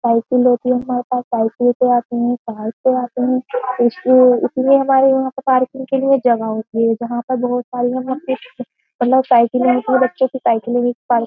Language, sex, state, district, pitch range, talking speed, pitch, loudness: Hindi, female, Uttar Pradesh, Jyotiba Phule Nagar, 240-260 Hz, 120 wpm, 250 Hz, -16 LUFS